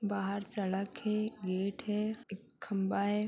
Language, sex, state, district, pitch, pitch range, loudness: Hindi, female, Bihar, Purnia, 200 Hz, 195-210 Hz, -36 LUFS